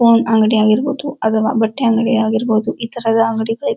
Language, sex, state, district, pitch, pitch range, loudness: Kannada, male, Karnataka, Dharwad, 225 Hz, 220-235 Hz, -15 LUFS